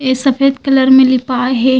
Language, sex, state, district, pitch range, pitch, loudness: Chhattisgarhi, female, Chhattisgarh, Raigarh, 255-270 Hz, 260 Hz, -11 LUFS